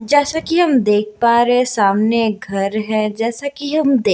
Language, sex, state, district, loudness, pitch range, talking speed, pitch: Hindi, female, Bihar, Katihar, -16 LUFS, 215-280 Hz, 200 wpm, 230 Hz